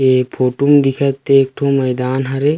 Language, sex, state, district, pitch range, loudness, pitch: Chhattisgarhi, male, Chhattisgarh, Rajnandgaon, 130-140 Hz, -15 LUFS, 135 Hz